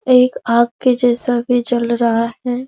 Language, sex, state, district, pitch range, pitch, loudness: Hindi, female, Chhattisgarh, Raigarh, 235-250 Hz, 245 Hz, -15 LUFS